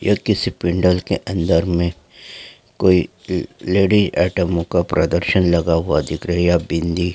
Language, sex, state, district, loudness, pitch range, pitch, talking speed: Hindi, male, West Bengal, Malda, -18 LUFS, 85-90 Hz, 85 Hz, 160 wpm